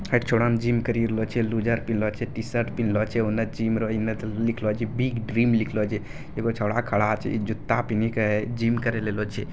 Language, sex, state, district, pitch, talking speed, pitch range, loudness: Maithili, male, Bihar, Bhagalpur, 115 Hz, 220 wpm, 110-115 Hz, -25 LUFS